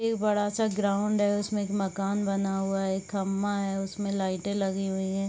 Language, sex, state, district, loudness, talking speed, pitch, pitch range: Hindi, female, Bihar, Saharsa, -28 LUFS, 215 wpm, 200 Hz, 195-205 Hz